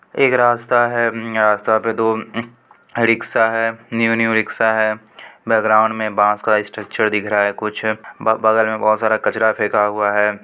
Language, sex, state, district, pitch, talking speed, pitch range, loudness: Hindi, female, Bihar, Supaul, 110 Hz, 180 wpm, 110-115 Hz, -17 LUFS